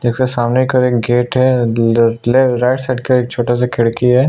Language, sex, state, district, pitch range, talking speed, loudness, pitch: Hindi, male, Chhattisgarh, Sukma, 120-130 Hz, 180 wpm, -14 LUFS, 125 Hz